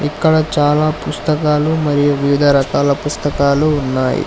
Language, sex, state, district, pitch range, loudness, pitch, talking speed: Telugu, male, Telangana, Hyderabad, 140-150 Hz, -15 LUFS, 145 Hz, 110 wpm